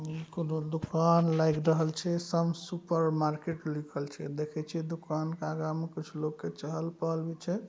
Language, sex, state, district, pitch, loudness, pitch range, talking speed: Maithili, male, Bihar, Saharsa, 160 Hz, -32 LUFS, 155-165 Hz, 170 wpm